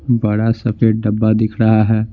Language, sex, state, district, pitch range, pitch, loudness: Hindi, male, Bihar, Patna, 110-115 Hz, 110 Hz, -15 LUFS